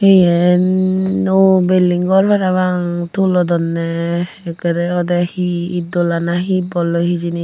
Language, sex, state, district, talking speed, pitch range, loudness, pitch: Chakma, female, Tripura, Unakoti, 105 wpm, 170-185 Hz, -15 LUFS, 175 Hz